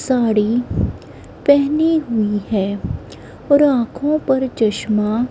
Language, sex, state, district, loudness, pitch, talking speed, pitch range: Hindi, male, Punjab, Kapurthala, -17 LUFS, 245 Hz, 90 wpm, 215-285 Hz